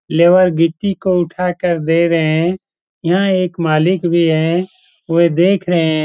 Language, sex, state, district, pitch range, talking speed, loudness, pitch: Hindi, male, Bihar, Supaul, 165-180 Hz, 170 wpm, -15 LUFS, 170 Hz